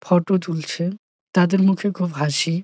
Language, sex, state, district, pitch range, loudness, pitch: Bengali, male, West Bengal, Jalpaiguri, 170-190 Hz, -21 LUFS, 180 Hz